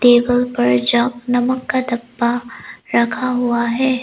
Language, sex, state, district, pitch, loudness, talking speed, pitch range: Hindi, female, Arunachal Pradesh, Lower Dibang Valley, 245 Hz, -17 LUFS, 135 wpm, 235-250 Hz